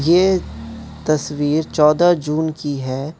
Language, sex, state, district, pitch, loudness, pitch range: Hindi, male, Manipur, Imphal West, 150 Hz, -18 LUFS, 140-160 Hz